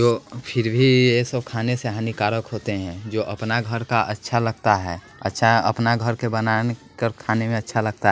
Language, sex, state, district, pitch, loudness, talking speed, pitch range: Hindi, male, Bihar, West Champaran, 115 Hz, -22 LUFS, 190 wpm, 110-120 Hz